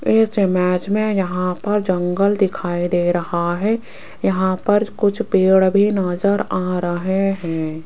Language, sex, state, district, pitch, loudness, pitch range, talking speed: Hindi, female, Rajasthan, Jaipur, 190 Hz, -18 LUFS, 180-205 Hz, 145 wpm